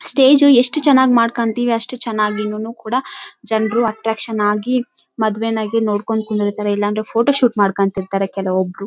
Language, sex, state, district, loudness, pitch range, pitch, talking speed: Kannada, female, Karnataka, Raichur, -16 LUFS, 210-245 Hz, 225 Hz, 90 wpm